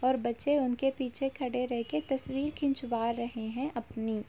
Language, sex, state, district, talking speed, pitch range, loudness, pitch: Hindi, female, Uttar Pradesh, Jalaun, 155 wpm, 235-270 Hz, -32 LUFS, 255 Hz